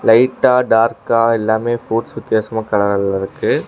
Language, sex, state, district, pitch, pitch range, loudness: Tamil, male, Tamil Nadu, Namakkal, 115 Hz, 110-115 Hz, -16 LUFS